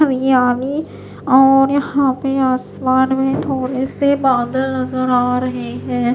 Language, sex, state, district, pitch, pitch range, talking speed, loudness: Hindi, female, Maharashtra, Mumbai Suburban, 260 Hz, 255-270 Hz, 145 wpm, -16 LUFS